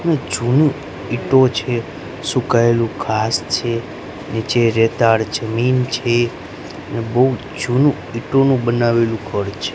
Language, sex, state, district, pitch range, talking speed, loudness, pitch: Gujarati, male, Gujarat, Gandhinagar, 115-125 Hz, 105 wpm, -17 LUFS, 120 Hz